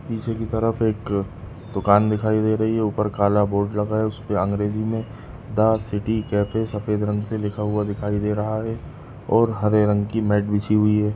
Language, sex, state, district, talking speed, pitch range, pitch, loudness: Hindi, female, Goa, North and South Goa, 185 wpm, 105-110 Hz, 105 Hz, -22 LUFS